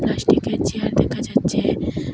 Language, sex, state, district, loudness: Bengali, female, Assam, Hailakandi, -20 LUFS